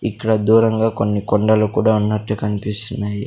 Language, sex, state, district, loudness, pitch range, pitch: Telugu, male, Andhra Pradesh, Sri Satya Sai, -17 LUFS, 105-110 Hz, 105 Hz